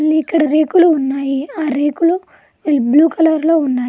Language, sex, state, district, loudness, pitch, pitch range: Telugu, female, Telangana, Mahabubabad, -14 LUFS, 310 Hz, 280-325 Hz